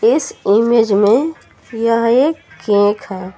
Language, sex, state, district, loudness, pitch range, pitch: Hindi, female, Uttar Pradesh, Lucknow, -14 LUFS, 205-245 Hz, 230 Hz